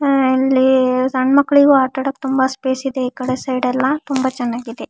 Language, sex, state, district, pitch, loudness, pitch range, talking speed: Kannada, female, Karnataka, Shimoga, 260 Hz, -16 LUFS, 255-270 Hz, 170 wpm